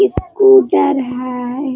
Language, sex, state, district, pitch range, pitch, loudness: Hindi, female, Jharkhand, Sahebganj, 255-390 Hz, 275 Hz, -13 LUFS